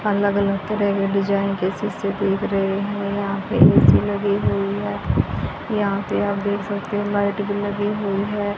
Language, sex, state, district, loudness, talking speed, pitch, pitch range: Hindi, female, Haryana, Jhajjar, -21 LUFS, 175 wpm, 200 Hz, 200-205 Hz